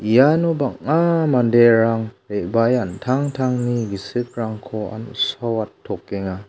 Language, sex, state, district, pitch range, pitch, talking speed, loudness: Garo, male, Meghalaya, South Garo Hills, 110-130 Hz, 120 Hz, 65 wpm, -20 LUFS